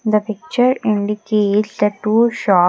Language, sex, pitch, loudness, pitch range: English, female, 215 Hz, -17 LUFS, 210-230 Hz